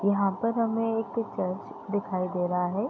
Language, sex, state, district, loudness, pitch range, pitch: Hindi, female, Bihar, East Champaran, -29 LUFS, 185-225 Hz, 200 Hz